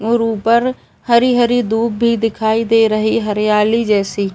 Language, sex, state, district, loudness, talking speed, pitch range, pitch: Hindi, male, Uttar Pradesh, Etah, -15 LUFS, 150 wpm, 215-235 Hz, 225 Hz